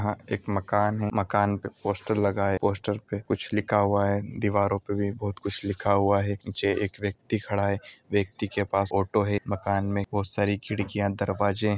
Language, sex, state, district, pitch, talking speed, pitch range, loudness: Hindi, male, Andhra Pradesh, Anantapur, 100 Hz, 215 wpm, 100-105 Hz, -27 LUFS